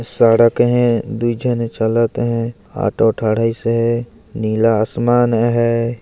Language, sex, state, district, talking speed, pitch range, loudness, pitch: Hindi, male, Chhattisgarh, Jashpur, 130 wpm, 115-120 Hz, -16 LUFS, 115 Hz